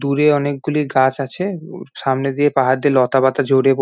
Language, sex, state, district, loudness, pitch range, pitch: Bengali, male, West Bengal, Jhargram, -17 LUFS, 135-145 Hz, 140 Hz